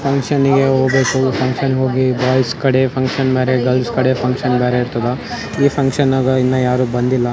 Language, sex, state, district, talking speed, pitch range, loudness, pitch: Kannada, male, Karnataka, Raichur, 140 wpm, 125-130 Hz, -15 LUFS, 130 Hz